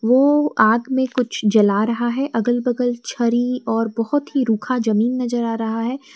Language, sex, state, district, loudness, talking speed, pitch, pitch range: Hindi, female, Jharkhand, Garhwa, -19 LUFS, 185 wpm, 240 Hz, 225-255 Hz